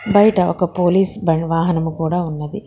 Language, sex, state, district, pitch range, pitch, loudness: Telugu, female, Telangana, Hyderabad, 165-190 Hz, 175 Hz, -17 LUFS